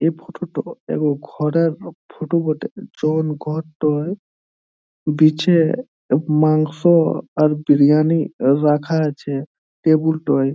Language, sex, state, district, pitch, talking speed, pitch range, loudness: Bengali, male, West Bengal, Jhargram, 155 Hz, 110 wpm, 150-165 Hz, -18 LUFS